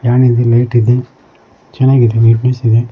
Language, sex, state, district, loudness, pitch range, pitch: Kannada, male, Karnataka, Koppal, -11 LUFS, 115-125 Hz, 120 Hz